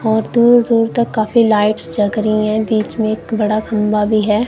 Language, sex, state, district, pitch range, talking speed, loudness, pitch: Hindi, female, Punjab, Kapurthala, 215-225 Hz, 215 wpm, -15 LUFS, 215 Hz